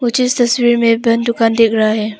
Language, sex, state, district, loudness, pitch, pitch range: Hindi, female, Arunachal Pradesh, Papum Pare, -13 LUFS, 230 Hz, 225-240 Hz